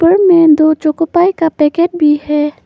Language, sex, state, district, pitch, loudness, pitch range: Hindi, female, Arunachal Pradesh, Papum Pare, 320 Hz, -11 LUFS, 300-340 Hz